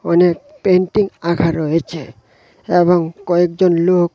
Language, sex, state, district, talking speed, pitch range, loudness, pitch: Bengali, male, Tripura, West Tripura, 100 wpm, 165-180 Hz, -15 LUFS, 175 Hz